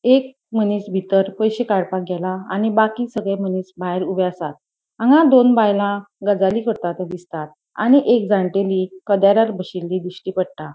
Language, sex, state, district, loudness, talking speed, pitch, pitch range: Konkani, female, Goa, North and South Goa, -18 LUFS, 150 wpm, 195 Hz, 185-220 Hz